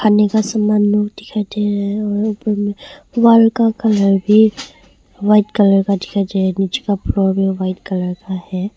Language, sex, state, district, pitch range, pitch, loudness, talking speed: Hindi, female, Arunachal Pradesh, Longding, 195-215 Hz, 205 Hz, -16 LUFS, 185 wpm